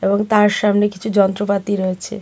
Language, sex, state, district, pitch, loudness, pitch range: Bengali, female, Tripura, West Tripura, 205 Hz, -17 LUFS, 195-210 Hz